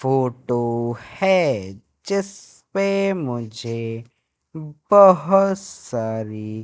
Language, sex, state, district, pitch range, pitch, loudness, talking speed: Hindi, male, Madhya Pradesh, Katni, 115-190 Hz, 130 Hz, -20 LUFS, 65 wpm